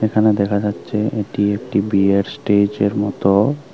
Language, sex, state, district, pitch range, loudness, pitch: Bengali, male, Tripura, Unakoti, 100-105 Hz, -18 LUFS, 100 Hz